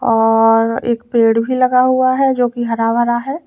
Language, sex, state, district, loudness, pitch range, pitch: Hindi, female, Uttar Pradesh, Lalitpur, -14 LUFS, 230-255 Hz, 240 Hz